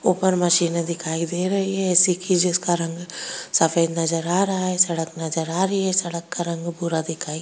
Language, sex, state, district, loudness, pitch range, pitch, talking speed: Hindi, female, Bihar, Kishanganj, -21 LUFS, 165-185 Hz, 175 Hz, 210 wpm